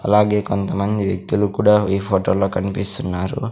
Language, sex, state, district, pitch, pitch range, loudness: Telugu, male, Andhra Pradesh, Sri Satya Sai, 100 Hz, 95-105 Hz, -19 LUFS